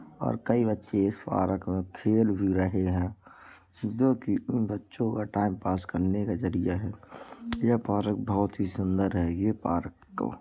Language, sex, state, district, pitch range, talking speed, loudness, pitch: Hindi, male, Uttar Pradesh, Jalaun, 95-110 Hz, 175 wpm, -29 LUFS, 100 Hz